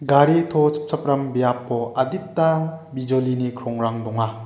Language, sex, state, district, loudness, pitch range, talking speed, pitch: Garo, male, Meghalaya, West Garo Hills, -21 LUFS, 120-155 Hz, 110 wpm, 130 Hz